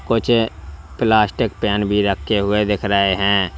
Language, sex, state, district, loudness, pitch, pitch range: Hindi, male, Uttar Pradesh, Lalitpur, -18 LUFS, 100 Hz, 100-105 Hz